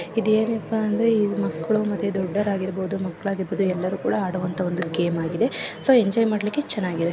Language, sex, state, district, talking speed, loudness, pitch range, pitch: Kannada, female, Karnataka, Chamarajanagar, 150 wpm, -23 LUFS, 185-220 Hz, 200 Hz